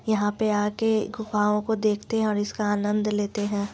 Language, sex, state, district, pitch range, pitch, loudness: Hindi, female, Bihar, Lakhisarai, 205-215 Hz, 210 Hz, -25 LUFS